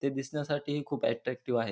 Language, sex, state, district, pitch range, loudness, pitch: Marathi, male, Maharashtra, Pune, 120-145 Hz, -33 LUFS, 140 Hz